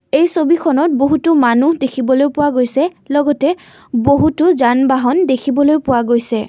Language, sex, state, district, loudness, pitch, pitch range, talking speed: Assamese, female, Assam, Kamrup Metropolitan, -14 LUFS, 285 Hz, 255-310 Hz, 130 wpm